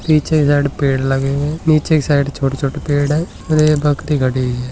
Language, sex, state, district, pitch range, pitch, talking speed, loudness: Hindi, male, Rajasthan, Nagaur, 135-155 Hz, 145 Hz, 240 wpm, -16 LUFS